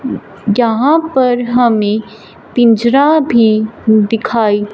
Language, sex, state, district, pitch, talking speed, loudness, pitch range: Hindi, female, Punjab, Fazilka, 235 Hz, 90 wpm, -12 LUFS, 220-255 Hz